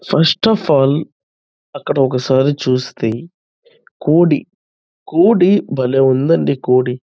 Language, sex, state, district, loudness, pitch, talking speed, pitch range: Telugu, male, Andhra Pradesh, Chittoor, -14 LUFS, 135 Hz, 110 wpm, 125-170 Hz